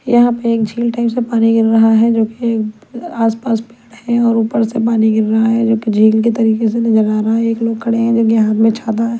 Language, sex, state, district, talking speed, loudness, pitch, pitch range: Hindi, female, Punjab, Kapurthala, 275 wpm, -14 LUFS, 225 Hz, 225-230 Hz